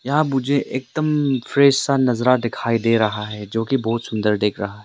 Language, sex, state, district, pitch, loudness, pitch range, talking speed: Hindi, male, Arunachal Pradesh, Lower Dibang Valley, 120 Hz, -19 LUFS, 110-140 Hz, 200 wpm